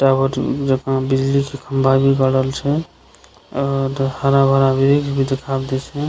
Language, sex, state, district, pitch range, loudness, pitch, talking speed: Maithili, male, Bihar, Begusarai, 135-140 Hz, -17 LUFS, 135 Hz, 150 wpm